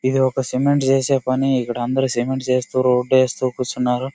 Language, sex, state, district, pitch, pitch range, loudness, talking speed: Telugu, male, Karnataka, Bellary, 130 Hz, 125-135 Hz, -19 LUFS, 190 wpm